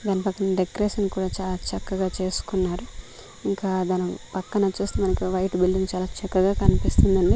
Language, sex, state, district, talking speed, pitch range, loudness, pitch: Telugu, female, Andhra Pradesh, Manyam, 130 wpm, 185-195 Hz, -25 LUFS, 190 Hz